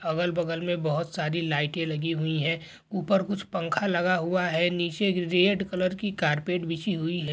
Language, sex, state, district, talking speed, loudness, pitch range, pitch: Hindi, male, Uttar Pradesh, Jalaun, 180 wpm, -27 LUFS, 165-185 Hz, 175 Hz